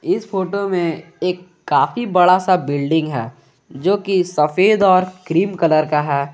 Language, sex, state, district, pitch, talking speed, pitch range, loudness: Hindi, male, Jharkhand, Garhwa, 180 Hz, 150 wpm, 155-190 Hz, -17 LUFS